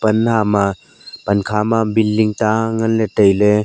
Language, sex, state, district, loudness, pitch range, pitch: Wancho, male, Arunachal Pradesh, Longding, -16 LUFS, 105-110 Hz, 110 Hz